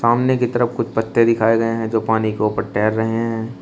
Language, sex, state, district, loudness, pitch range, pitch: Hindi, male, Uttar Pradesh, Shamli, -18 LUFS, 110-115 Hz, 115 Hz